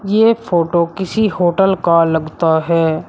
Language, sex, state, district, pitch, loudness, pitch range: Hindi, male, Uttar Pradesh, Shamli, 170 Hz, -15 LUFS, 165-195 Hz